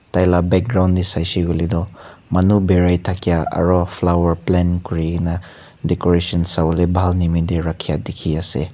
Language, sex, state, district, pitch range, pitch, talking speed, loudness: Nagamese, male, Nagaland, Kohima, 85-90 Hz, 90 Hz, 170 wpm, -18 LUFS